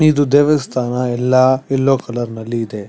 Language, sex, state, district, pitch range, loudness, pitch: Kannada, male, Karnataka, Chamarajanagar, 120-135 Hz, -16 LUFS, 130 Hz